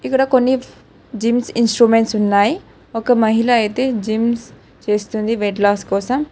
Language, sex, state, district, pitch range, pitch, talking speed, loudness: Telugu, female, Telangana, Hyderabad, 215-245 Hz, 225 Hz, 135 wpm, -16 LUFS